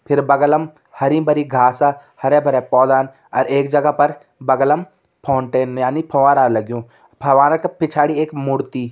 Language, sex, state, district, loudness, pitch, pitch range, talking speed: Kumaoni, male, Uttarakhand, Tehri Garhwal, -16 LUFS, 140 Hz, 130-150 Hz, 155 wpm